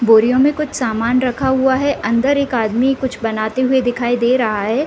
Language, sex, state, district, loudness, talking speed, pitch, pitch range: Hindi, female, Bihar, Gopalganj, -16 LUFS, 235 wpm, 255 Hz, 230-265 Hz